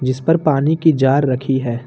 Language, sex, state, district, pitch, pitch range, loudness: Hindi, male, Uttar Pradesh, Lucknow, 135 Hz, 130-155 Hz, -16 LUFS